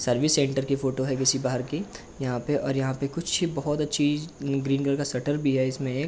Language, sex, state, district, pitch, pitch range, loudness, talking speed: Hindi, male, Uttar Pradesh, Jalaun, 135 Hz, 130-145 Hz, -26 LUFS, 235 wpm